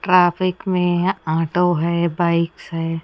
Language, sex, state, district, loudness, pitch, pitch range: Hindi, female, Odisha, Nuapada, -19 LUFS, 175 Hz, 165-180 Hz